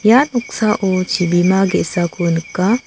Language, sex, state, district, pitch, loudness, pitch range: Garo, female, Meghalaya, South Garo Hills, 190 Hz, -16 LUFS, 175-220 Hz